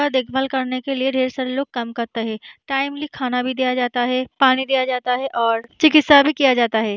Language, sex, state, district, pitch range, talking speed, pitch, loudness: Hindi, female, Bihar, Vaishali, 245-270 Hz, 225 wpm, 255 Hz, -19 LUFS